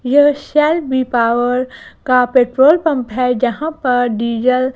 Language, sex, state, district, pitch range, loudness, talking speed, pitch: Hindi, female, Gujarat, Gandhinagar, 250-290 Hz, -14 LUFS, 150 wpm, 255 Hz